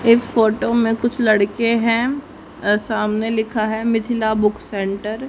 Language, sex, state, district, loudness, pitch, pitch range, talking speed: Hindi, female, Haryana, Jhajjar, -19 LUFS, 225 Hz, 215-235 Hz, 145 wpm